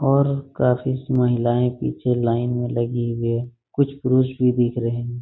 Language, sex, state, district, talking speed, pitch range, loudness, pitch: Hindi, male, Bihar, Saran, 195 wpm, 120-130 Hz, -21 LUFS, 125 Hz